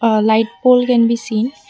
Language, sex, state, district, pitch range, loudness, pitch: English, female, Assam, Kamrup Metropolitan, 225-245 Hz, -14 LUFS, 230 Hz